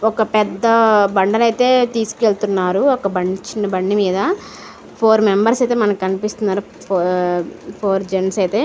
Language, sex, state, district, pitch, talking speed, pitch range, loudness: Telugu, female, Andhra Pradesh, Srikakulam, 205 Hz, 120 wpm, 190-220 Hz, -16 LUFS